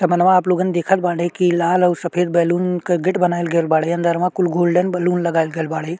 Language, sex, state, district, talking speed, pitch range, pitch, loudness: Bhojpuri, male, Uttar Pradesh, Ghazipur, 220 wpm, 170-180 Hz, 175 Hz, -17 LUFS